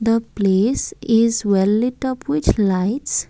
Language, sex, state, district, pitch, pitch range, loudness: English, female, Assam, Kamrup Metropolitan, 225 Hz, 200-250 Hz, -18 LUFS